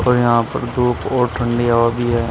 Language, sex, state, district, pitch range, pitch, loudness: Hindi, male, Uttar Pradesh, Shamli, 115-125 Hz, 120 Hz, -17 LUFS